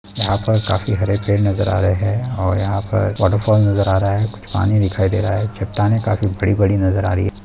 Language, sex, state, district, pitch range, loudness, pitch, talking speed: Hindi, male, Chhattisgarh, Balrampur, 95-105 Hz, -17 LUFS, 100 Hz, 240 wpm